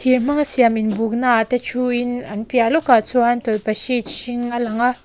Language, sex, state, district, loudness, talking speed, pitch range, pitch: Mizo, female, Mizoram, Aizawl, -18 LUFS, 180 wpm, 225-250 Hz, 240 Hz